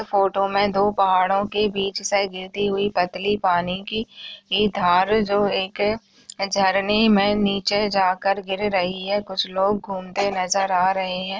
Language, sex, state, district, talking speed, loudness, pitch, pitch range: Hindi, female, Maharashtra, Aurangabad, 165 wpm, -21 LUFS, 195 Hz, 190-205 Hz